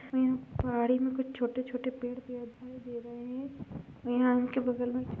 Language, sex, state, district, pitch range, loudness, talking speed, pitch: Hindi, female, Bihar, Sitamarhi, 245-255 Hz, -33 LUFS, 205 wpm, 250 Hz